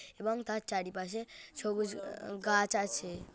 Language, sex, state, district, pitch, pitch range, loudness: Bengali, female, West Bengal, Kolkata, 205 Hz, 195-220 Hz, -35 LUFS